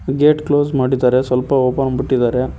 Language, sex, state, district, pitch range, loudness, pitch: Kannada, male, Karnataka, Koppal, 125-140 Hz, -16 LUFS, 130 Hz